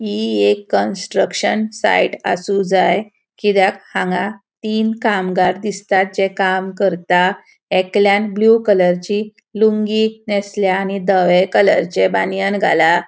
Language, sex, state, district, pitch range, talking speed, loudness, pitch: Konkani, female, Goa, North and South Goa, 185-215 Hz, 110 wpm, -16 LUFS, 195 Hz